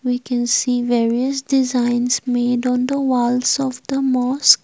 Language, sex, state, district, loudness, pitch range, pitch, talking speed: English, female, Assam, Kamrup Metropolitan, -18 LUFS, 245-265 Hz, 250 Hz, 155 wpm